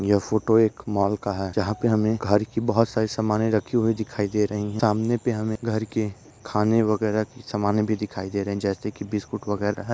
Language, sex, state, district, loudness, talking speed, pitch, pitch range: Hindi, male, Maharashtra, Dhule, -24 LUFS, 230 wpm, 110 Hz, 105-110 Hz